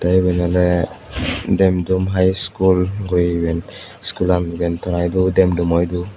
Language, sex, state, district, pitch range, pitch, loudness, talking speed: Chakma, male, Tripura, Unakoti, 85-95 Hz, 90 Hz, -18 LUFS, 135 wpm